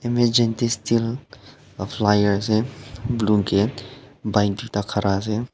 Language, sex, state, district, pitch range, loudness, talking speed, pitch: Nagamese, male, Nagaland, Dimapur, 105-120 Hz, -21 LUFS, 140 wpm, 110 Hz